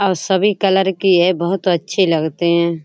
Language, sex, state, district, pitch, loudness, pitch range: Hindi, female, Uttar Pradesh, Budaun, 185 Hz, -16 LUFS, 170-195 Hz